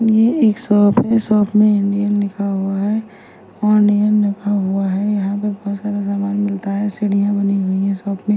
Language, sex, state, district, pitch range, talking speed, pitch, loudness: Hindi, female, Chandigarh, Chandigarh, 200-210 Hz, 195 wpm, 205 Hz, -17 LUFS